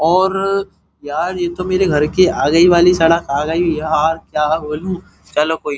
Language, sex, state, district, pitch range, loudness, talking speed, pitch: Hindi, male, Uttar Pradesh, Muzaffarnagar, 155-185 Hz, -15 LUFS, 175 wpm, 165 Hz